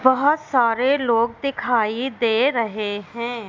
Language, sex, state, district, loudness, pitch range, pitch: Hindi, female, Madhya Pradesh, Katni, -20 LUFS, 230-265 Hz, 240 Hz